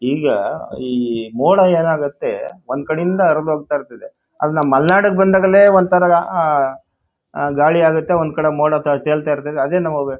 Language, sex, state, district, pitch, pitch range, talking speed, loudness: Kannada, male, Karnataka, Shimoga, 155 Hz, 140-175 Hz, 110 wpm, -16 LUFS